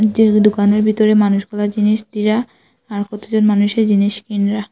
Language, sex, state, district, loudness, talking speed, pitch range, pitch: Bengali, female, Assam, Hailakandi, -15 LUFS, 140 wpm, 205-215 Hz, 210 Hz